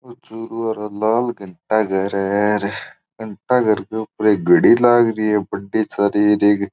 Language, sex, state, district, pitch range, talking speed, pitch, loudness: Marwari, male, Rajasthan, Churu, 100-110 Hz, 170 wpm, 105 Hz, -18 LUFS